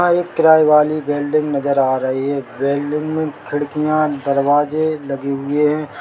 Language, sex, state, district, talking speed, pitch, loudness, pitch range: Hindi, male, Chhattisgarh, Bilaspur, 160 wpm, 145 Hz, -17 LUFS, 140-155 Hz